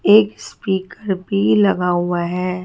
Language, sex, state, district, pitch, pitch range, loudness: Hindi, female, Haryana, Charkhi Dadri, 185 Hz, 180-200 Hz, -18 LUFS